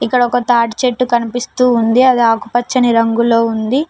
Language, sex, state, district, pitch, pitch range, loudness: Telugu, female, Telangana, Mahabubabad, 240 Hz, 230-250 Hz, -13 LUFS